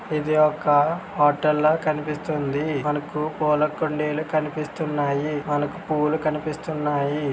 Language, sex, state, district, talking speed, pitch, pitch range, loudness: Telugu, male, Andhra Pradesh, Krishna, 90 wpm, 150 Hz, 150-155 Hz, -23 LUFS